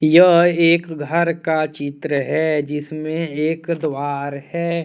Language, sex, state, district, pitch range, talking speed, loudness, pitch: Hindi, male, Jharkhand, Deoghar, 150-170 Hz, 110 wpm, -19 LUFS, 155 Hz